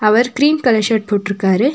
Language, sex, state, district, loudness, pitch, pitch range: Tamil, female, Tamil Nadu, Nilgiris, -15 LUFS, 225 Hz, 210-255 Hz